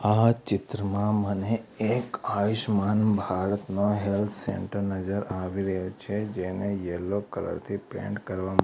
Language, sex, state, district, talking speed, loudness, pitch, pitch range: Gujarati, male, Gujarat, Gandhinagar, 125 wpm, -28 LUFS, 100 Hz, 95-105 Hz